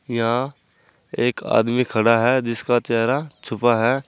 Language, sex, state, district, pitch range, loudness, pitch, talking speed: Hindi, male, Uttar Pradesh, Saharanpur, 115-130 Hz, -20 LUFS, 120 Hz, 130 wpm